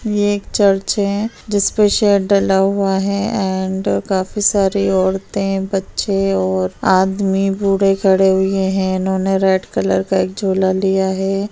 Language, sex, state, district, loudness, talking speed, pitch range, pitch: Hindi, female, Bihar, Saharsa, -16 LUFS, 160 wpm, 190-200 Hz, 195 Hz